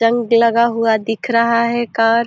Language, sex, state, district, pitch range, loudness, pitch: Hindi, female, Uttar Pradesh, Deoria, 230-235 Hz, -15 LUFS, 230 Hz